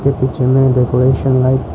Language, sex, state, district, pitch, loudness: Hindi, male, Tripura, Dhalai, 130 Hz, -13 LUFS